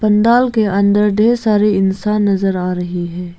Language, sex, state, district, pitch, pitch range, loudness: Hindi, female, Arunachal Pradesh, Lower Dibang Valley, 205 Hz, 190-210 Hz, -14 LUFS